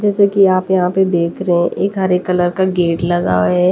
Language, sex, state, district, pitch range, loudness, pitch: Hindi, female, Delhi, New Delhi, 175-190 Hz, -15 LUFS, 180 Hz